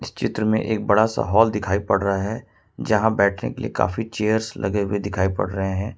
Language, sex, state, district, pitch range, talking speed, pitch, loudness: Hindi, male, Jharkhand, Ranchi, 100-110 Hz, 220 wpm, 105 Hz, -22 LUFS